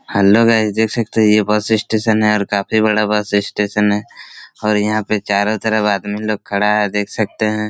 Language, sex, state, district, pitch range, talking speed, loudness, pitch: Hindi, male, Chhattisgarh, Raigarh, 105-110 Hz, 195 wpm, -16 LUFS, 105 Hz